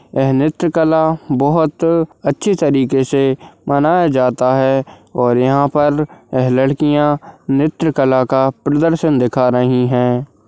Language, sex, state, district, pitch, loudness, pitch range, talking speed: Hindi, male, Bihar, Darbhanga, 140 Hz, -15 LUFS, 130-155 Hz, 125 wpm